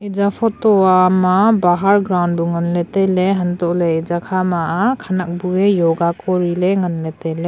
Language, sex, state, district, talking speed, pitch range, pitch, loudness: Wancho, female, Arunachal Pradesh, Longding, 185 wpm, 175-195 Hz, 185 Hz, -16 LUFS